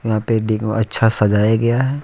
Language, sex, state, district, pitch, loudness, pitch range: Hindi, male, Jharkhand, Ranchi, 110 Hz, -16 LUFS, 110-115 Hz